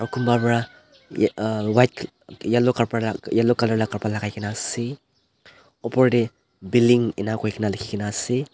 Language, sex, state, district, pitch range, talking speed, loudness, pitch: Nagamese, male, Nagaland, Dimapur, 105-120 Hz, 140 wpm, -22 LUFS, 115 Hz